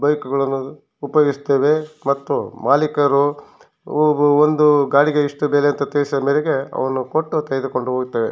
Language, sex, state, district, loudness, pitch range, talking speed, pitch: Kannada, male, Karnataka, Shimoga, -18 LUFS, 135-150 Hz, 95 wpm, 145 Hz